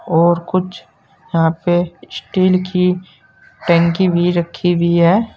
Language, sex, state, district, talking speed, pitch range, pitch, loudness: Hindi, male, Uttar Pradesh, Saharanpur, 125 wpm, 170-185 Hz, 175 Hz, -16 LUFS